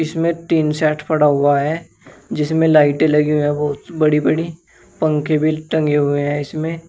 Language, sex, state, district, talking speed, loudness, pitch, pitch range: Hindi, male, Uttar Pradesh, Shamli, 175 wpm, -17 LUFS, 155 Hz, 150-160 Hz